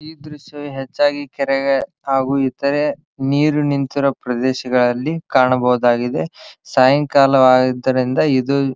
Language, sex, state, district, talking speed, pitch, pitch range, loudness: Kannada, male, Karnataka, Dharwad, 90 wpm, 135 Hz, 130-145 Hz, -17 LUFS